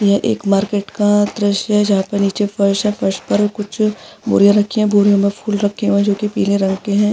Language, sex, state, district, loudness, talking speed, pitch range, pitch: Hindi, female, Maharashtra, Aurangabad, -16 LUFS, 225 wpm, 200-210 Hz, 205 Hz